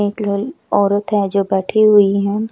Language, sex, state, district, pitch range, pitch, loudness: Hindi, female, Chandigarh, Chandigarh, 200-210 Hz, 205 Hz, -15 LUFS